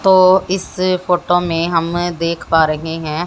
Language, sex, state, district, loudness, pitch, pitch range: Hindi, female, Haryana, Jhajjar, -16 LUFS, 175 Hz, 165-185 Hz